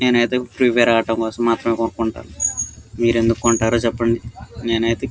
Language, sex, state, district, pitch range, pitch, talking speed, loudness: Telugu, male, Andhra Pradesh, Guntur, 115-120 Hz, 115 Hz, 150 wpm, -19 LUFS